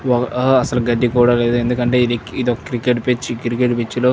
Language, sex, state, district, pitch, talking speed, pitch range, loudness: Telugu, male, Andhra Pradesh, Chittoor, 120 Hz, 190 wpm, 120-125 Hz, -17 LUFS